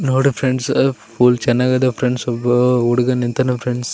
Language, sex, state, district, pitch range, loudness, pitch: Kannada, male, Karnataka, Raichur, 120-130 Hz, -16 LUFS, 125 Hz